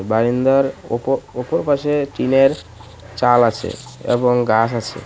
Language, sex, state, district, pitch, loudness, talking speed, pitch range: Bengali, male, Tripura, West Tripura, 125 Hz, -17 LUFS, 120 wpm, 115-135 Hz